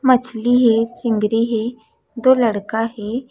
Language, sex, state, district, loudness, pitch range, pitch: Chhattisgarhi, female, Chhattisgarh, Raigarh, -18 LUFS, 225-245 Hz, 230 Hz